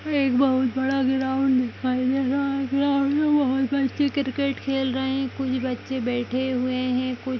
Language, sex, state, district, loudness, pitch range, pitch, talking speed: Kumaoni, female, Uttarakhand, Tehri Garhwal, -23 LUFS, 255-275 Hz, 265 Hz, 185 wpm